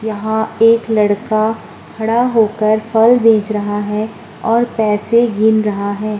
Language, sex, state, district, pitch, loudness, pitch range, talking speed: Hindi, female, Uttar Pradesh, Muzaffarnagar, 220 Hz, -14 LUFS, 210-225 Hz, 135 wpm